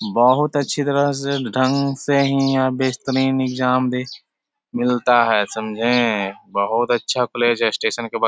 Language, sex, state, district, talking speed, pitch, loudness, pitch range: Hindi, male, Bihar, Jahanabad, 160 wpm, 130 Hz, -19 LUFS, 120-140 Hz